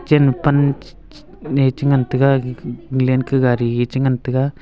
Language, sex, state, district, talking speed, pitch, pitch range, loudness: Wancho, male, Arunachal Pradesh, Longding, 220 wpm, 130 Hz, 125-140 Hz, -17 LUFS